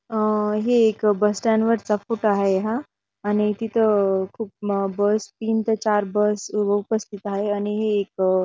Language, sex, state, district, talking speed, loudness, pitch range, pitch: Marathi, female, Maharashtra, Dhule, 170 wpm, -22 LUFS, 205-220 Hz, 210 Hz